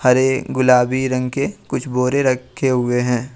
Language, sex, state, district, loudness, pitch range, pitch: Hindi, male, Jharkhand, Ranchi, -18 LUFS, 125-130 Hz, 130 Hz